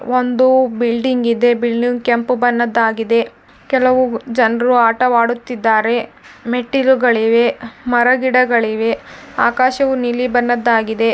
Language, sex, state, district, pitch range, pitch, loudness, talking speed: Kannada, female, Karnataka, Dharwad, 230-250 Hz, 240 Hz, -15 LUFS, 80 wpm